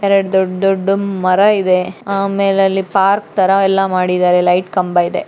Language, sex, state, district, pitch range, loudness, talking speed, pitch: Kannada, female, Karnataka, Shimoga, 185-195 Hz, -14 LUFS, 160 wpm, 195 Hz